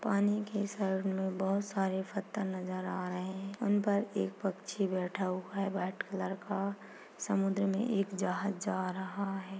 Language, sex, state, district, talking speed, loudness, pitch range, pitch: Hindi, female, Chhattisgarh, Bastar, 175 wpm, -35 LUFS, 190-200 Hz, 195 Hz